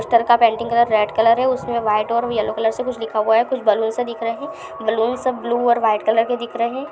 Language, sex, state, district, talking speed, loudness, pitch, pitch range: Hindi, female, Bihar, Lakhisarai, 260 wpm, -19 LUFS, 235 Hz, 220-240 Hz